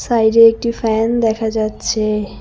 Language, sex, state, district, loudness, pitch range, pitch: Bengali, female, West Bengal, Cooch Behar, -15 LUFS, 220-230 Hz, 225 Hz